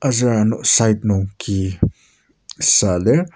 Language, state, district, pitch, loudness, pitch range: Ao, Nagaland, Kohima, 105 Hz, -16 LUFS, 95-120 Hz